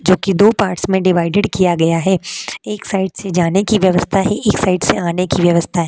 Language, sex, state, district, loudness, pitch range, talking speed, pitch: Hindi, female, Uttar Pradesh, Jalaun, -15 LUFS, 175-195 Hz, 235 wpm, 185 Hz